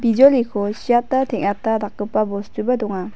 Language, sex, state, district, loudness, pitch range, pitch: Garo, female, Meghalaya, West Garo Hills, -19 LUFS, 205-245 Hz, 220 Hz